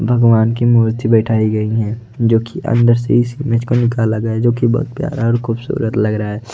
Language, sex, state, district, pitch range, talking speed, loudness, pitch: Hindi, male, Odisha, Nuapada, 110-120 Hz, 230 wpm, -15 LUFS, 115 Hz